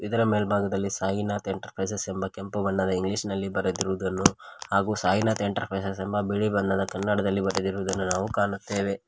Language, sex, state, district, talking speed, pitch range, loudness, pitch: Kannada, male, Karnataka, Koppal, 130 wpm, 95-105 Hz, -27 LUFS, 100 Hz